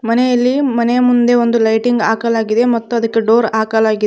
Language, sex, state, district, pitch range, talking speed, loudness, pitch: Kannada, female, Karnataka, Koppal, 225-245 Hz, 145 wpm, -13 LUFS, 230 Hz